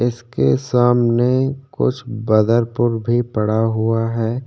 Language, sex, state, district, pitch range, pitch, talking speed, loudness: Hindi, male, Maharashtra, Chandrapur, 110-120 Hz, 120 Hz, 95 wpm, -18 LUFS